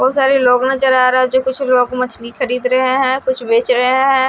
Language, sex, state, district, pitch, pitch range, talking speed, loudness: Hindi, female, Odisha, Malkangiri, 255 Hz, 250-265 Hz, 240 wpm, -14 LUFS